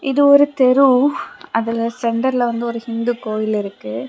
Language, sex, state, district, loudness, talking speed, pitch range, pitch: Tamil, female, Tamil Nadu, Kanyakumari, -17 LUFS, 145 wpm, 230-260 Hz, 235 Hz